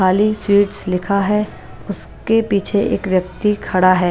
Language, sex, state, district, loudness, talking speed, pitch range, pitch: Hindi, female, Bihar, West Champaran, -17 LUFS, 160 wpm, 185-210 Hz, 200 Hz